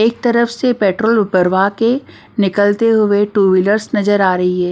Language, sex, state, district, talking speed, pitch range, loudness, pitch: Hindi, female, Bihar, Patna, 180 wpm, 195-230 Hz, -14 LUFS, 205 Hz